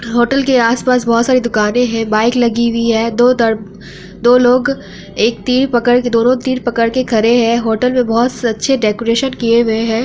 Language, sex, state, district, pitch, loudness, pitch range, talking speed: Hindi, female, Bihar, Araria, 235 Hz, -13 LUFS, 225-250 Hz, 185 wpm